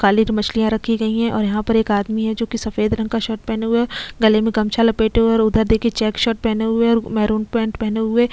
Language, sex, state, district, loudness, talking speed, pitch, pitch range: Hindi, female, Chhattisgarh, Kabirdham, -18 LUFS, 280 wpm, 220 Hz, 220-230 Hz